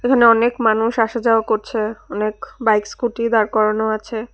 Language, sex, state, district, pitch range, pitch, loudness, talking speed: Bengali, female, Tripura, West Tripura, 220-235 Hz, 225 Hz, -18 LUFS, 165 wpm